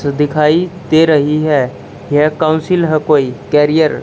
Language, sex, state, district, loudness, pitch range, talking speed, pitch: Hindi, male, Haryana, Charkhi Dadri, -13 LUFS, 150-160 Hz, 150 wpm, 155 Hz